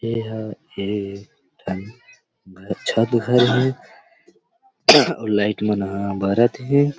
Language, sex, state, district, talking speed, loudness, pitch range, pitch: Chhattisgarhi, male, Chhattisgarh, Rajnandgaon, 110 wpm, -20 LUFS, 100-130 Hz, 115 Hz